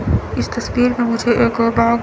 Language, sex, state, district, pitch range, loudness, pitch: Hindi, female, Chandigarh, Chandigarh, 230-240 Hz, -17 LUFS, 235 Hz